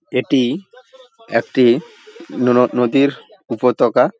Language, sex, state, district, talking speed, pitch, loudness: Bengali, male, West Bengal, Paschim Medinipur, 70 wpm, 135 Hz, -16 LUFS